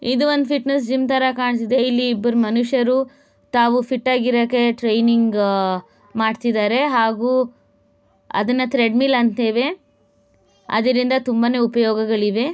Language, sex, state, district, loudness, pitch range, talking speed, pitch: Kannada, female, Karnataka, Bellary, -18 LUFS, 225-255 Hz, 115 wpm, 240 Hz